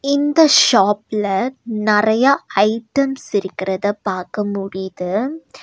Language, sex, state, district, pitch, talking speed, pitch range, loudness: Tamil, female, Tamil Nadu, Nilgiris, 210 Hz, 75 wpm, 195-265 Hz, -17 LUFS